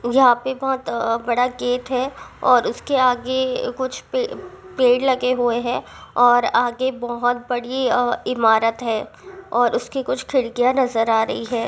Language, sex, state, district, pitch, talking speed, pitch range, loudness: Hindi, female, Uttar Pradesh, Hamirpur, 250 Hz, 160 wpm, 240-260 Hz, -20 LUFS